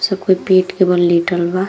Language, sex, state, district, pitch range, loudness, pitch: Bhojpuri, female, Uttar Pradesh, Gorakhpur, 175-190 Hz, -14 LUFS, 185 Hz